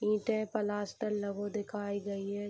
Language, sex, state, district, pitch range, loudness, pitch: Hindi, female, Bihar, Saharsa, 200-215 Hz, -35 LUFS, 205 Hz